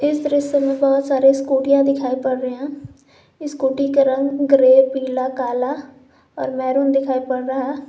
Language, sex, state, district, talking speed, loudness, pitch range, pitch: Hindi, female, Jharkhand, Garhwa, 165 wpm, -18 LUFS, 260-280 Hz, 270 Hz